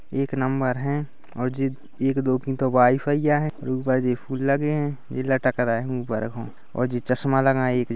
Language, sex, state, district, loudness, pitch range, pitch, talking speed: Hindi, male, Chhattisgarh, Rajnandgaon, -24 LUFS, 125-135 Hz, 130 Hz, 225 wpm